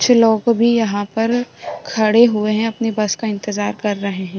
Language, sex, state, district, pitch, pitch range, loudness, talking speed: Hindi, female, Bihar, Sitamarhi, 220 Hz, 205-230 Hz, -17 LUFS, 220 wpm